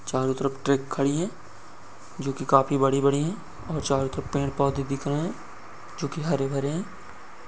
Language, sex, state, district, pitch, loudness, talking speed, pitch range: Hindi, male, Uttar Pradesh, Hamirpur, 140 Hz, -26 LUFS, 190 wpm, 135-145 Hz